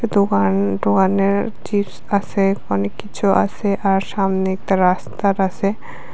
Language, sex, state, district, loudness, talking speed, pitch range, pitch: Bengali, female, Tripura, West Tripura, -18 LUFS, 115 wpm, 180-200 Hz, 195 Hz